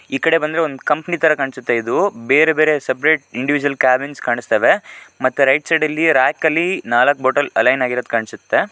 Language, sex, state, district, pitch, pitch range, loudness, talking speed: Kannada, male, Karnataka, Shimoga, 145 Hz, 130-160 Hz, -16 LUFS, 165 wpm